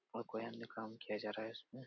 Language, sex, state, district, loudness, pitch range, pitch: Hindi, male, Bihar, Jamui, -46 LUFS, 110-115 Hz, 110 Hz